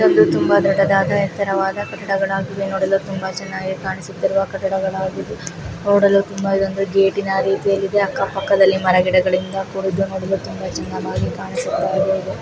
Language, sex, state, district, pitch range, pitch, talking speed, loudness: Kannada, female, Karnataka, Mysore, 190-195 Hz, 195 Hz, 115 wpm, -19 LUFS